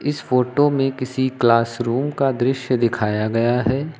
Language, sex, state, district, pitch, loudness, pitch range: Hindi, male, Uttar Pradesh, Lucknow, 125 Hz, -19 LUFS, 120-135 Hz